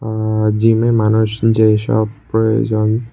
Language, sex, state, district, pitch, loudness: Bengali, male, Tripura, West Tripura, 110 Hz, -15 LUFS